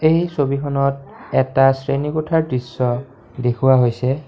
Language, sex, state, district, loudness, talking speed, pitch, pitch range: Assamese, male, Assam, Kamrup Metropolitan, -18 LUFS, 100 wpm, 135 Hz, 125-145 Hz